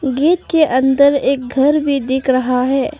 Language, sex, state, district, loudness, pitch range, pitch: Hindi, female, Arunachal Pradesh, Papum Pare, -14 LUFS, 260-285 Hz, 270 Hz